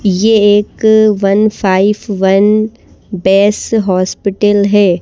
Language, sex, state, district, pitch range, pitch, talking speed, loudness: Hindi, female, Madhya Pradesh, Bhopal, 195-215 Hz, 205 Hz, 95 wpm, -11 LUFS